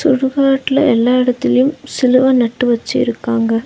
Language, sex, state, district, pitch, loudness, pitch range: Tamil, female, Tamil Nadu, Nilgiris, 255 Hz, -14 LUFS, 240-270 Hz